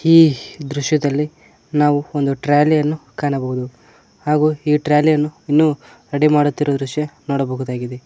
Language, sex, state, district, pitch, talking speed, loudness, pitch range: Kannada, male, Karnataka, Koppal, 145 Hz, 120 wpm, -18 LUFS, 135-150 Hz